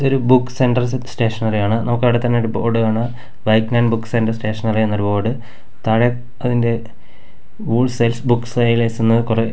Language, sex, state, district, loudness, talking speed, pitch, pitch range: Malayalam, male, Kerala, Kasaragod, -17 LUFS, 125 wpm, 115 Hz, 110-120 Hz